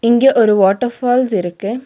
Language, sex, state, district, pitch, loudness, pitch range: Tamil, female, Tamil Nadu, Nilgiris, 235 Hz, -14 LUFS, 200-245 Hz